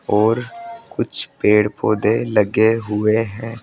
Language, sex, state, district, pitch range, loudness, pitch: Hindi, male, Rajasthan, Jaipur, 105-115 Hz, -18 LUFS, 110 Hz